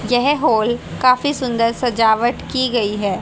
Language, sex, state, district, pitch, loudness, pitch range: Hindi, female, Haryana, Jhajjar, 240 Hz, -17 LUFS, 225-255 Hz